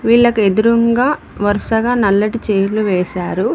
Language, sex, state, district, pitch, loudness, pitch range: Telugu, female, Telangana, Mahabubabad, 215 Hz, -15 LUFS, 200-235 Hz